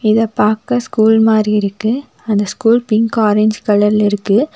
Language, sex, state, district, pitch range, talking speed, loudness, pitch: Tamil, female, Tamil Nadu, Nilgiris, 210-225 Hz, 145 wpm, -14 LUFS, 215 Hz